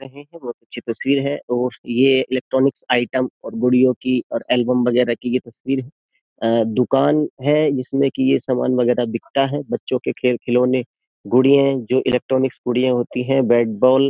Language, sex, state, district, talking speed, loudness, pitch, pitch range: Hindi, male, Uttar Pradesh, Jyotiba Phule Nagar, 180 wpm, -19 LUFS, 130 Hz, 125-135 Hz